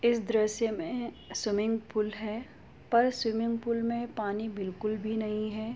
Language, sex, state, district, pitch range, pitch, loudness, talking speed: Hindi, female, Uttar Pradesh, Jyotiba Phule Nagar, 215-235 Hz, 220 Hz, -31 LUFS, 155 wpm